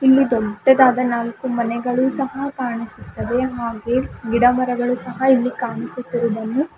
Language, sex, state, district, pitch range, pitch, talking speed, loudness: Kannada, female, Karnataka, Bidar, 235-260 Hz, 245 Hz, 95 wpm, -19 LUFS